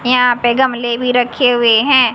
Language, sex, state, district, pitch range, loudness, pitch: Hindi, female, Haryana, Jhajjar, 240-250 Hz, -12 LUFS, 245 Hz